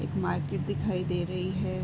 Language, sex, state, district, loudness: Hindi, female, Uttar Pradesh, Varanasi, -31 LUFS